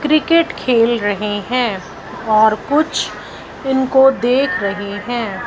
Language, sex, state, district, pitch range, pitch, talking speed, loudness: Hindi, female, Punjab, Fazilka, 205-265 Hz, 240 Hz, 110 wpm, -16 LUFS